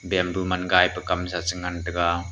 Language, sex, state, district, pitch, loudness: Wancho, male, Arunachal Pradesh, Longding, 90 Hz, -24 LUFS